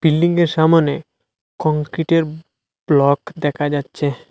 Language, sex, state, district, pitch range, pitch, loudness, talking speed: Bengali, male, Assam, Hailakandi, 145-165 Hz, 155 Hz, -17 LUFS, 85 wpm